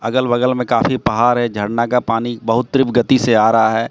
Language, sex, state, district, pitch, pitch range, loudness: Hindi, male, Bihar, Katihar, 120 Hz, 115-125 Hz, -15 LUFS